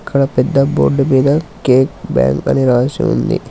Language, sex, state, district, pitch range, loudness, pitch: Telugu, male, Telangana, Hyderabad, 125-140 Hz, -14 LUFS, 135 Hz